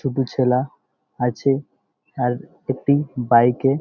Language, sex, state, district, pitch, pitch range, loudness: Bengali, male, West Bengal, Malda, 135 Hz, 125-140 Hz, -20 LUFS